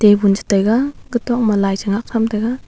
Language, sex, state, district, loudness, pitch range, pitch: Wancho, female, Arunachal Pradesh, Longding, -17 LUFS, 200-235 Hz, 215 Hz